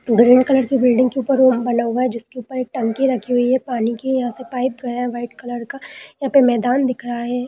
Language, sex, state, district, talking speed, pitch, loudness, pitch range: Hindi, female, Bihar, Gaya, 240 wpm, 250 Hz, -18 LUFS, 240-260 Hz